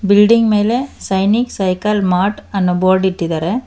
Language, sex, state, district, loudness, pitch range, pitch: Kannada, female, Karnataka, Bangalore, -15 LUFS, 185-220 Hz, 200 Hz